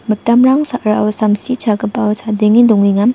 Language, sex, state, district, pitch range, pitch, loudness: Garo, female, Meghalaya, West Garo Hills, 210-240 Hz, 215 Hz, -12 LUFS